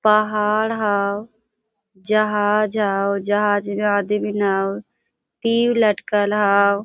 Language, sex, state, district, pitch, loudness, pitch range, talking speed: Hindi, female, Jharkhand, Sahebganj, 210 Hz, -19 LUFS, 200-215 Hz, 95 wpm